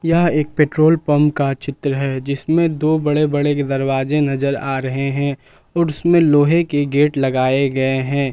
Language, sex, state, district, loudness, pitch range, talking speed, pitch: Hindi, male, Jharkhand, Palamu, -17 LUFS, 135-150 Hz, 175 wpm, 145 Hz